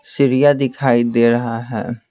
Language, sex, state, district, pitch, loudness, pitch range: Hindi, male, Bihar, Patna, 120 Hz, -16 LUFS, 115-135 Hz